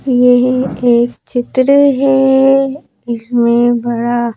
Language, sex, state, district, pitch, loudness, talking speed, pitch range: Hindi, female, Madhya Pradesh, Bhopal, 245 Hz, -12 LUFS, 95 wpm, 240-270 Hz